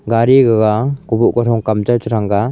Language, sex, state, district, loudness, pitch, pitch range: Wancho, male, Arunachal Pradesh, Longding, -14 LUFS, 115 Hz, 110-120 Hz